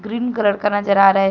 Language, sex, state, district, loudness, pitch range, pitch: Hindi, female, Jharkhand, Deoghar, -16 LUFS, 195-220 Hz, 205 Hz